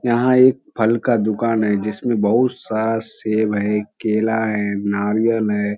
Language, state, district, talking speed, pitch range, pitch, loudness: Surjapuri, Bihar, Kishanganj, 165 wpm, 105-115 Hz, 110 Hz, -18 LUFS